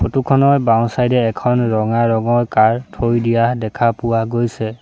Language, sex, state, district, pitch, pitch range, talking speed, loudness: Assamese, male, Assam, Sonitpur, 115 Hz, 115-125 Hz, 175 wpm, -16 LUFS